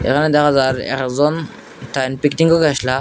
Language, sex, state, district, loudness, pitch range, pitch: Bengali, male, Assam, Hailakandi, -16 LUFS, 130-150 Hz, 140 Hz